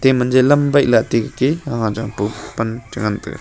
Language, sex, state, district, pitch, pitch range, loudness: Wancho, male, Arunachal Pradesh, Longding, 115 Hz, 110-130 Hz, -17 LUFS